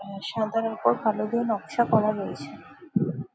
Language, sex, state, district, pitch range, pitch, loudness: Bengali, female, West Bengal, Jalpaiguri, 200-225 Hz, 215 Hz, -26 LUFS